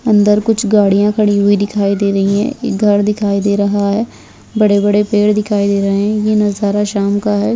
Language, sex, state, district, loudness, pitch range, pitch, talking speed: Hindi, female, Bihar, Purnia, -13 LUFS, 200-210 Hz, 205 Hz, 245 wpm